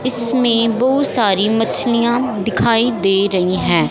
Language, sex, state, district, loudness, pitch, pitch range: Hindi, female, Punjab, Fazilka, -15 LUFS, 230 Hz, 205-245 Hz